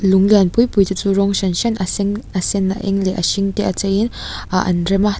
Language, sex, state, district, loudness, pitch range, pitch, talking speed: Mizo, female, Mizoram, Aizawl, -17 LUFS, 190-200 Hz, 195 Hz, 290 wpm